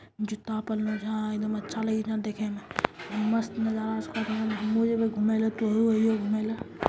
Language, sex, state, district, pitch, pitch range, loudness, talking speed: Angika, female, Bihar, Bhagalpur, 220 Hz, 215-220 Hz, -29 LUFS, 140 wpm